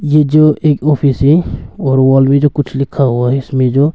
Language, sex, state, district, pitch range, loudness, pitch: Hindi, male, Arunachal Pradesh, Longding, 135-150 Hz, -12 LUFS, 140 Hz